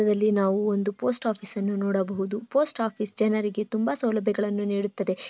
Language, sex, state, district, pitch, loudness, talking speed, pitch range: Kannada, female, Karnataka, Bellary, 210 Hz, -26 LUFS, 145 wpm, 200-220 Hz